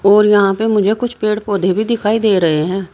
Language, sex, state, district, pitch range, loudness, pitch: Hindi, female, Uttar Pradesh, Saharanpur, 195-215 Hz, -14 LUFS, 210 Hz